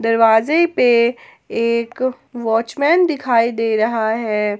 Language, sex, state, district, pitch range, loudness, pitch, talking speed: Hindi, female, Jharkhand, Ranchi, 225-250 Hz, -17 LUFS, 230 Hz, 105 wpm